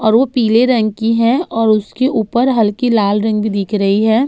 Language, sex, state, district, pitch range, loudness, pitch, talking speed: Hindi, female, Uttar Pradesh, Jalaun, 215-240 Hz, -14 LUFS, 225 Hz, 225 wpm